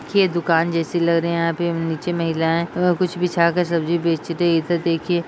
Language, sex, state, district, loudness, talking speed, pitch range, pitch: Hindi, female, Bihar, Vaishali, -20 LUFS, 240 wpm, 165-175 Hz, 170 Hz